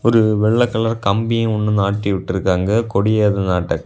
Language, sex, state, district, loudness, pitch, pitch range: Tamil, male, Tamil Nadu, Kanyakumari, -17 LUFS, 105 Hz, 100-115 Hz